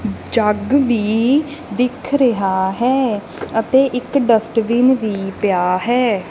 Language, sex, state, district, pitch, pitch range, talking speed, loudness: Punjabi, female, Punjab, Kapurthala, 230 Hz, 210-255 Hz, 105 wpm, -17 LUFS